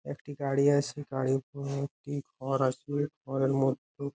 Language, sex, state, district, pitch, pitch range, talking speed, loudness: Bengali, male, West Bengal, Jhargram, 140 Hz, 135-145 Hz, 160 wpm, -31 LUFS